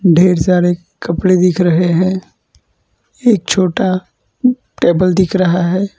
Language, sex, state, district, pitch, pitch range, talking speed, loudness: Hindi, male, Gujarat, Valsad, 180 Hz, 175-185 Hz, 130 wpm, -14 LUFS